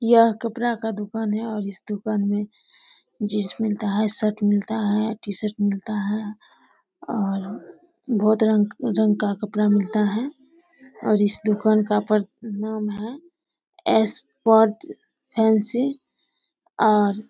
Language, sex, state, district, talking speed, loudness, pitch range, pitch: Hindi, female, Bihar, Samastipur, 130 wpm, -22 LUFS, 210-230 Hz, 215 Hz